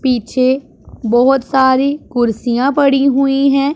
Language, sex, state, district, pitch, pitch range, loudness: Hindi, female, Punjab, Pathankot, 270 Hz, 250-275 Hz, -13 LUFS